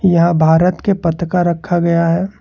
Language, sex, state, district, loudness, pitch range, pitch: Hindi, male, Karnataka, Bangalore, -14 LUFS, 170-180 Hz, 175 Hz